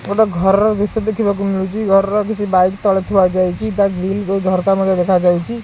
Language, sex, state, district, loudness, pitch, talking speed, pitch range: Odia, male, Odisha, Khordha, -15 LUFS, 195 Hz, 200 wpm, 190-210 Hz